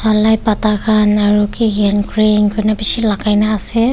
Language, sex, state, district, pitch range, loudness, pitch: Nagamese, female, Nagaland, Kohima, 210-215 Hz, -14 LUFS, 215 Hz